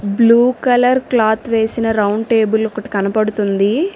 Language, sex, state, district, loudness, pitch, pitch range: Telugu, female, Telangana, Hyderabad, -15 LUFS, 220 Hz, 215-240 Hz